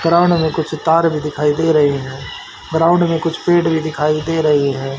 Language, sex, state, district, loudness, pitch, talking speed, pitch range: Hindi, male, Haryana, Rohtak, -15 LUFS, 160 Hz, 215 wpm, 150-165 Hz